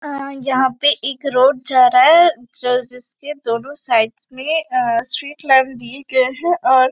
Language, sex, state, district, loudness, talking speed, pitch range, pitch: Hindi, female, Chhattisgarh, Bastar, -16 LUFS, 165 wpm, 250-290 Hz, 265 Hz